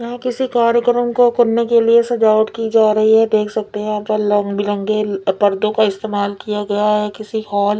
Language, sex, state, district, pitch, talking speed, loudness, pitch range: Hindi, female, Punjab, Fazilka, 215 Hz, 225 wpm, -16 LUFS, 210-235 Hz